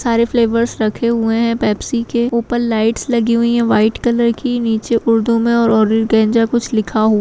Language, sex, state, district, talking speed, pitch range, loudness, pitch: Kumaoni, female, Uttarakhand, Tehri Garhwal, 185 wpm, 225-235 Hz, -15 LUFS, 230 Hz